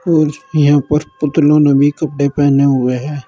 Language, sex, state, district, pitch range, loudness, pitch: Hindi, male, Uttar Pradesh, Saharanpur, 140-150 Hz, -13 LUFS, 145 Hz